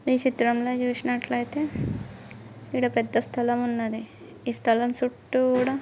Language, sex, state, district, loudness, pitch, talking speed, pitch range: Telugu, female, Andhra Pradesh, Guntur, -26 LUFS, 245 Hz, 105 wpm, 235-255 Hz